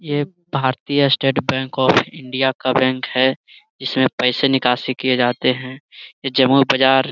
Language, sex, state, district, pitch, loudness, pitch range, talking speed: Hindi, male, Bihar, Jamui, 130 Hz, -18 LUFS, 130-140 Hz, 160 wpm